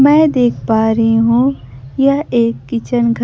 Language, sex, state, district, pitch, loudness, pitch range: Hindi, female, Bihar, Kaimur, 235 Hz, -14 LUFS, 225-270 Hz